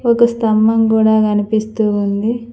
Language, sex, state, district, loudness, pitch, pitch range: Telugu, female, Telangana, Mahabubabad, -14 LUFS, 220 Hz, 215-230 Hz